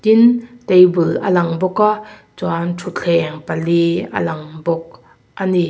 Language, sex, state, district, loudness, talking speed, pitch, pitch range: Mizo, female, Mizoram, Aizawl, -16 LUFS, 145 wpm, 175 Hz, 165-195 Hz